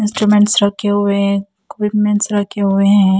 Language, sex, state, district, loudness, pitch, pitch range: Hindi, female, Chhattisgarh, Raipur, -14 LUFS, 205 Hz, 200-210 Hz